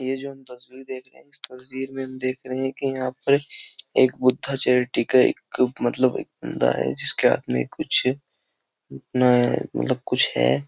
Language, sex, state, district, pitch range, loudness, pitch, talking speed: Hindi, male, Uttar Pradesh, Jyotiba Phule Nagar, 125-135 Hz, -22 LUFS, 130 Hz, 180 wpm